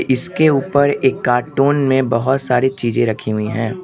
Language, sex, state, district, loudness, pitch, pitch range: Hindi, male, Arunachal Pradesh, Lower Dibang Valley, -16 LUFS, 130 Hz, 120-140 Hz